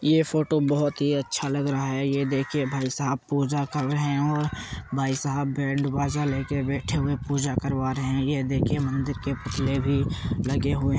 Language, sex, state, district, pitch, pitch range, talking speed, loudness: Hindi, male, Uttar Pradesh, Jyotiba Phule Nagar, 140 Hz, 135-145 Hz, 200 wpm, -26 LUFS